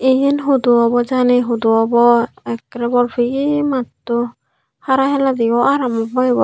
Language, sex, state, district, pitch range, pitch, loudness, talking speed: Chakma, female, Tripura, Unakoti, 235-265 Hz, 245 Hz, -16 LUFS, 140 wpm